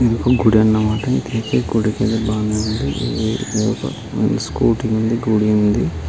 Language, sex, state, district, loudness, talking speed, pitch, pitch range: Telugu, male, Andhra Pradesh, Guntur, -18 LUFS, 150 wpm, 110 Hz, 105-115 Hz